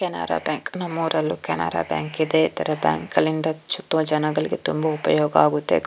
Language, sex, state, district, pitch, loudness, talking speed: Kannada, female, Karnataka, Chamarajanagar, 155 Hz, -22 LUFS, 155 wpm